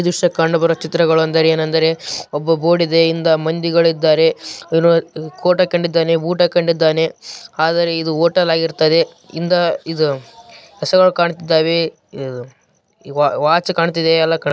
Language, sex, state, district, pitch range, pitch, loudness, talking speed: Kannada, male, Karnataka, Raichur, 160-170 Hz, 165 Hz, -15 LUFS, 105 wpm